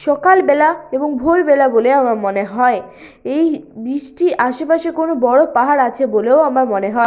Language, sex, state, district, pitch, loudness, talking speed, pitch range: Bengali, female, West Bengal, Purulia, 275 Hz, -15 LUFS, 160 wpm, 245-315 Hz